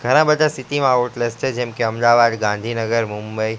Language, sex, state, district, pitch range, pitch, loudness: Gujarati, male, Gujarat, Gandhinagar, 115-130 Hz, 120 Hz, -18 LUFS